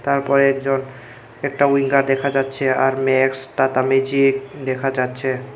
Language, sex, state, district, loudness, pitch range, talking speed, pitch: Bengali, male, Tripura, Unakoti, -18 LUFS, 130-140 Hz, 120 wpm, 135 Hz